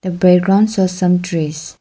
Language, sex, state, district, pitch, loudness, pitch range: English, female, Arunachal Pradesh, Lower Dibang Valley, 180 Hz, -15 LUFS, 175-190 Hz